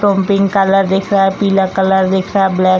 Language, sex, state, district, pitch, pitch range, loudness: Hindi, female, Bihar, Jamui, 195 Hz, 190-195 Hz, -13 LUFS